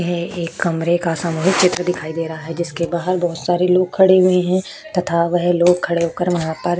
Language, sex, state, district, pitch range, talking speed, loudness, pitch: Hindi, female, Uttar Pradesh, Budaun, 170-180 Hz, 220 wpm, -18 LUFS, 175 Hz